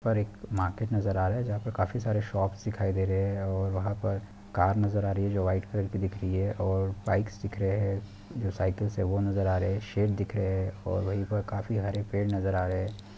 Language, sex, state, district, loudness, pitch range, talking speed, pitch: Hindi, male, Chhattisgarh, Balrampur, -30 LUFS, 95-105 Hz, 265 wpm, 100 Hz